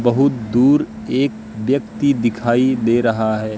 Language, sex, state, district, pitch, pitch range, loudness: Hindi, male, Madhya Pradesh, Katni, 120 Hz, 110-135 Hz, -17 LUFS